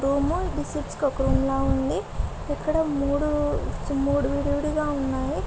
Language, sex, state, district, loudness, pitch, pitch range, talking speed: Telugu, female, Andhra Pradesh, Guntur, -25 LUFS, 285 Hz, 275-295 Hz, 110 wpm